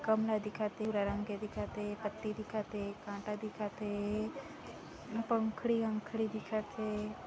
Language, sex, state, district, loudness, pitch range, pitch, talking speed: Hindi, female, Chhattisgarh, Kabirdham, -38 LUFS, 210-220 Hz, 215 Hz, 125 wpm